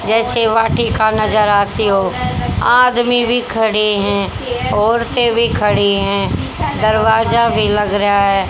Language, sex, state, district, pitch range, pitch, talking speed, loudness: Hindi, female, Haryana, Rohtak, 195-225 Hz, 210 Hz, 125 wpm, -14 LUFS